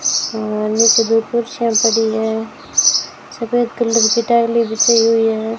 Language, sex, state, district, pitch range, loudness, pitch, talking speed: Hindi, female, Rajasthan, Jaisalmer, 220-235 Hz, -15 LUFS, 230 Hz, 130 wpm